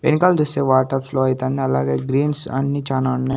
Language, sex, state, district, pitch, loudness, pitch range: Telugu, male, Andhra Pradesh, Annamaya, 135 Hz, -19 LUFS, 130-140 Hz